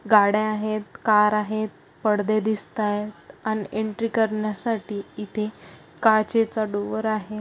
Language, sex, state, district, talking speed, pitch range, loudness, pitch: Marathi, female, Maharashtra, Aurangabad, 115 wpm, 210-220 Hz, -24 LUFS, 215 Hz